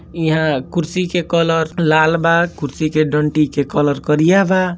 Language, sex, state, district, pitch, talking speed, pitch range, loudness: Hindi, male, Bihar, East Champaran, 160 Hz, 165 wpm, 150-170 Hz, -16 LUFS